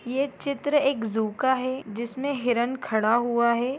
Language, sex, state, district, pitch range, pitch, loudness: Bhojpuri, female, Bihar, Saran, 235-275 Hz, 250 Hz, -25 LUFS